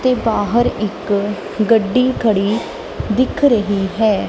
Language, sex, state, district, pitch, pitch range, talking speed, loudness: Punjabi, female, Punjab, Kapurthala, 215 Hz, 205-240 Hz, 110 wpm, -16 LUFS